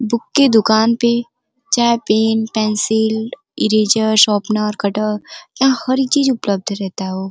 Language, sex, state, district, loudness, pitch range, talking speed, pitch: Hindi, female, Uttar Pradesh, Gorakhpur, -16 LUFS, 215-240 Hz, 140 wpm, 220 Hz